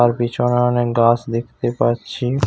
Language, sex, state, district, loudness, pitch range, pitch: Bengali, male, West Bengal, Paschim Medinipur, -18 LUFS, 115-120 Hz, 120 Hz